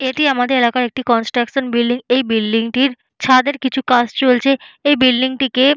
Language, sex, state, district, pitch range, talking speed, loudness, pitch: Bengali, female, West Bengal, Purulia, 245-265 Hz, 175 wpm, -15 LUFS, 255 Hz